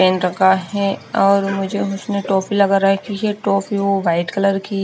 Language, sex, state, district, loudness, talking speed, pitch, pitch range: Hindi, female, Haryana, Charkhi Dadri, -17 LUFS, 185 wpm, 195 Hz, 195-200 Hz